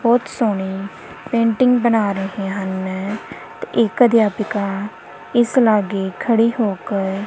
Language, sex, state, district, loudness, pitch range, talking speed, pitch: Punjabi, female, Punjab, Kapurthala, -18 LUFS, 195-230 Hz, 105 wpm, 210 Hz